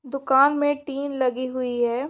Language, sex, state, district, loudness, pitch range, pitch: Hindi, female, Jharkhand, Sahebganj, -22 LUFS, 255-280 Hz, 270 Hz